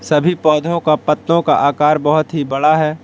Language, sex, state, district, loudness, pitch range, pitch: Hindi, male, Jharkhand, Palamu, -14 LUFS, 150-160 Hz, 155 Hz